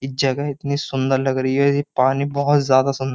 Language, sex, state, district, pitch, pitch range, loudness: Hindi, male, Uttar Pradesh, Jyotiba Phule Nagar, 135 Hz, 135-140 Hz, -19 LUFS